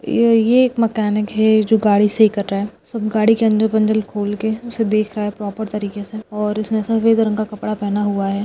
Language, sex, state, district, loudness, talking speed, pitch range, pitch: Hindi, female, Maharashtra, Nagpur, -17 LUFS, 235 wpm, 210-220 Hz, 215 Hz